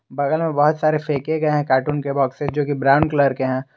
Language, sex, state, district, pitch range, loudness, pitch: Hindi, male, Jharkhand, Garhwa, 135-150 Hz, -19 LUFS, 145 Hz